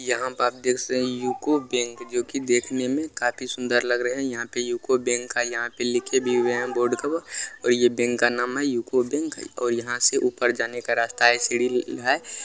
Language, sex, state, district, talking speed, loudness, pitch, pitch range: Maithili, male, Bihar, Supaul, 230 wpm, -24 LUFS, 120 Hz, 120-130 Hz